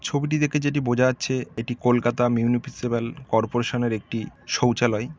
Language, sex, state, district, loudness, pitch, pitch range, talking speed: Bengali, male, West Bengal, North 24 Parganas, -24 LUFS, 120 Hz, 120-130 Hz, 140 wpm